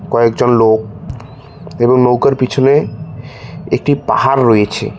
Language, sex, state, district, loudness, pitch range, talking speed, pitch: Bengali, male, West Bengal, Cooch Behar, -12 LUFS, 120-140 Hz, 95 wpm, 130 Hz